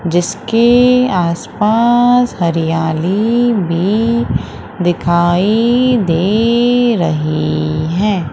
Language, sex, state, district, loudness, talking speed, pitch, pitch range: Hindi, female, Madhya Pradesh, Umaria, -13 LUFS, 60 wpm, 195 Hz, 170-235 Hz